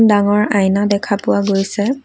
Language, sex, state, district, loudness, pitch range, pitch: Assamese, female, Assam, Kamrup Metropolitan, -15 LUFS, 200-210 Hz, 205 Hz